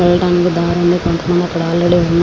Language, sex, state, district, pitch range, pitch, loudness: Telugu, female, Andhra Pradesh, Srikakulam, 170-175 Hz, 175 Hz, -14 LUFS